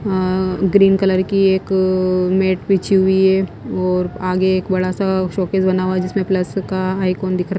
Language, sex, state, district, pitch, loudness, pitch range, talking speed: Hindi, female, Himachal Pradesh, Shimla, 190 Hz, -17 LUFS, 185-190 Hz, 200 wpm